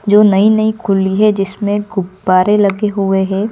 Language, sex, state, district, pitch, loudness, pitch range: Hindi, female, Gujarat, Gandhinagar, 200 Hz, -13 LUFS, 195-210 Hz